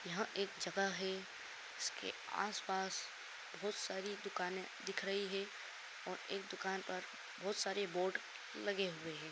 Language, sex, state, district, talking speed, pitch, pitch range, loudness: Hindi, male, Bihar, Darbhanga, 140 wpm, 195 Hz, 185-200 Hz, -42 LUFS